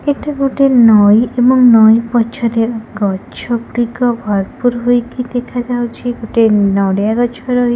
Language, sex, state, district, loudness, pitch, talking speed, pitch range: Odia, female, Odisha, Khordha, -13 LUFS, 240 Hz, 130 wpm, 220-245 Hz